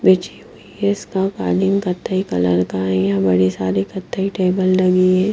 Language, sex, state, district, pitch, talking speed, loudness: Hindi, female, Himachal Pradesh, Shimla, 180 Hz, 170 wpm, -18 LUFS